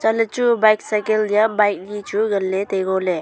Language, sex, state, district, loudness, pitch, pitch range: Wancho, female, Arunachal Pradesh, Longding, -19 LUFS, 210 Hz, 195-220 Hz